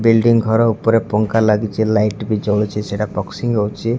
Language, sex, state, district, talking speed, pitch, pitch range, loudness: Odia, male, Odisha, Malkangiri, 150 wpm, 110 Hz, 105-115 Hz, -17 LUFS